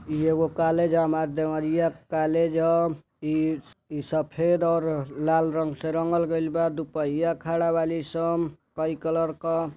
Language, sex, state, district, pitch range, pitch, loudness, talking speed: Bhojpuri, male, Uttar Pradesh, Deoria, 155-165 Hz, 160 Hz, -25 LUFS, 160 wpm